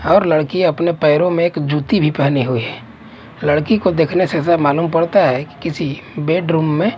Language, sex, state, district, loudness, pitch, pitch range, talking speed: Hindi, male, Haryana, Charkhi Dadri, -16 LUFS, 155 Hz, 145-170 Hz, 190 wpm